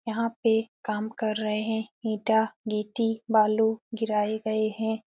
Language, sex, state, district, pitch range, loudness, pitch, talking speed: Hindi, female, Uttar Pradesh, Etah, 215-225 Hz, -27 LUFS, 220 Hz, 140 wpm